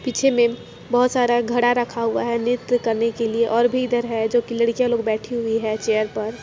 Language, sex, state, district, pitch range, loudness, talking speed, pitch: Hindi, female, Jharkhand, Sahebganj, 225-245 Hz, -21 LUFS, 245 wpm, 235 Hz